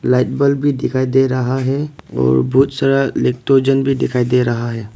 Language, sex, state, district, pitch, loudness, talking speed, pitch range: Hindi, male, Arunachal Pradesh, Papum Pare, 130 Hz, -16 LUFS, 195 wpm, 125-135 Hz